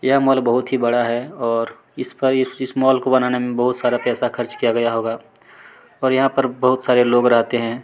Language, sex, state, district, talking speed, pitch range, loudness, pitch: Hindi, male, Chhattisgarh, Kabirdham, 215 wpm, 120-130 Hz, -18 LUFS, 125 Hz